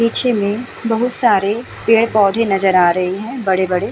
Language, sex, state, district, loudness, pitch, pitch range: Hindi, female, Uttar Pradesh, Muzaffarnagar, -15 LUFS, 210 Hz, 190-230 Hz